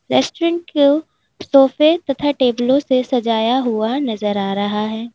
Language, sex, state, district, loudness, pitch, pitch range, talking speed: Hindi, female, Uttar Pradesh, Lalitpur, -17 LUFS, 255 Hz, 220-290 Hz, 140 wpm